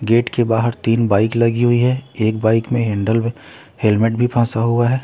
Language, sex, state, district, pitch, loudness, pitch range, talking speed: Hindi, male, Bihar, West Champaran, 115 Hz, -17 LUFS, 110-120 Hz, 215 wpm